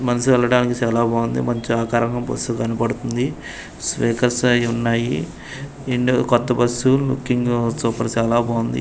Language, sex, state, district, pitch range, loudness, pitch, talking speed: Telugu, male, Andhra Pradesh, Manyam, 115-125 Hz, -19 LUFS, 120 Hz, 115 wpm